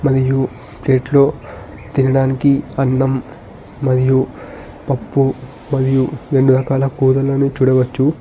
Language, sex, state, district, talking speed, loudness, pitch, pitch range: Telugu, male, Telangana, Hyderabad, 80 wpm, -16 LUFS, 135 Hz, 130-135 Hz